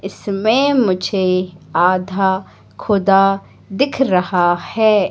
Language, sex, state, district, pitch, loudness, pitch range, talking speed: Hindi, female, Madhya Pradesh, Katni, 195 Hz, -16 LUFS, 185-210 Hz, 80 wpm